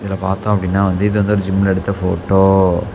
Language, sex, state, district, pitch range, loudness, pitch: Tamil, male, Tamil Nadu, Namakkal, 95-100 Hz, -15 LUFS, 95 Hz